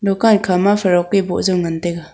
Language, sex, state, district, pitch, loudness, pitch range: Wancho, female, Arunachal Pradesh, Longding, 185 Hz, -16 LUFS, 175-200 Hz